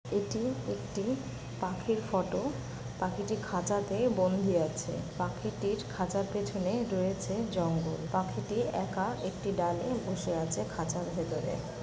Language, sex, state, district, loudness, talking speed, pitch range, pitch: Bengali, female, West Bengal, Purulia, -33 LUFS, 110 wpm, 170-200 Hz, 185 Hz